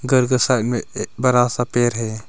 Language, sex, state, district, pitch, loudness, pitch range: Hindi, male, Arunachal Pradesh, Longding, 120 Hz, -19 LUFS, 115-125 Hz